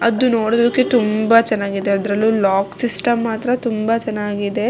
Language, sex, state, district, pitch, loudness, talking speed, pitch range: Kannada, female, Karnataka, Shimoga, 225 Hz, -17 LUFS, 130 wpm, 205-235 Hz